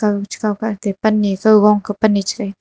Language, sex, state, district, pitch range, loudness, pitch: Wancho, female, Arunachal Pradesh, Longding, 205-215 Hz, -16 LUFS, 210 Hz